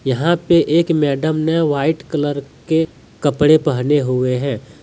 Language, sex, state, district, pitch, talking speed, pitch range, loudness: Hindi, male, Jharkhand, Deoghar, 150 Hz, 150 wpm, 140-160 Hz, -17 LUFS